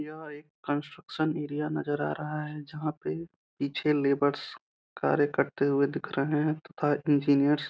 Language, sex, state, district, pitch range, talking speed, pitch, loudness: Hindi, male, Uttar Pradesh, Deoria, 140-150 Hz, 165 wpm, 150 Hz, -29 LUFS